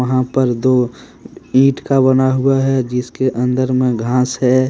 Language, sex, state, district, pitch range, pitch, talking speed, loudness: Hindi, male, Jharkhand, Deoghar, 125-130 Hz, 130 Hz, 165 wpm, -15 LUFS